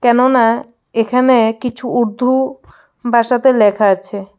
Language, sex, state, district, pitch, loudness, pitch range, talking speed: Bengali, female, Tripura, West Tripura, 240 Hz, -14 LUFS, 225-250 Hz, 95 wpm